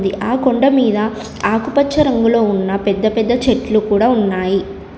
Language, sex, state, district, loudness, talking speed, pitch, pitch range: Telugu, female, Telangana, Komaram Bheem, -15 LUFS, 130 wpm, 220 Hz, 200-245 Hz